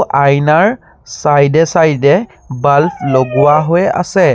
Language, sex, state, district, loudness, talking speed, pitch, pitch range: Assamese, male, Assam, Sonitpur, -11 LUFS, 125 wpm, 150 Hz, 140-170 Hz